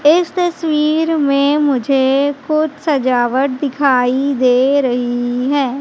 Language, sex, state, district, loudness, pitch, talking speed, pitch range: Hindi, female, Madhya Pradesh, Katni, -15 LUFS, 280 Hz, 105 wpm, 260-300 Hz